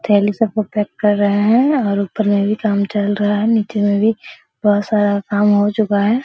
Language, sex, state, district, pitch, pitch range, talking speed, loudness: Hindi, female, Bihar, Araria, 205 Hz, 205-215 Hz, 230 wpm, -16 LUFS